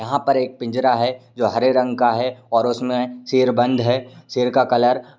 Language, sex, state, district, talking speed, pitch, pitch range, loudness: Hindi, male, Uttar Pradesh, Varanasi, 220 wpm, 125 Hz, 120-130 Hz, -19 LUFS